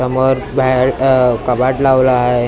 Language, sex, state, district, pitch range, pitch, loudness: Marathi, male, Maharashtra, Mumbai Suburban, 125-130 Hz, 130 Hz, -13 LUFS